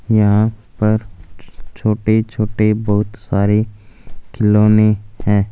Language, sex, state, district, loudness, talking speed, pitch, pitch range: Hindi, male, Punjab, Fazilka, -16 LUFS, 85 wpm, 105 Hz, 105-110 Hz